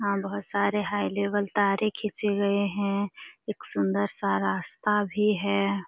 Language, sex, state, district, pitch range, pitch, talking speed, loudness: Hindi, female, Jharkhand, Sahebganj, 200-205 Hz, 200 Hz, 155 wpm, -27 LUFS